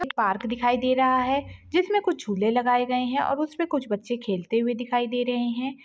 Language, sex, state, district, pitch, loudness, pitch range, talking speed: Kumaoni, female, Uttarakhand, Uttarkashi, 245 Hz, -25 LUFS, 240-270 Hz, 235 wpm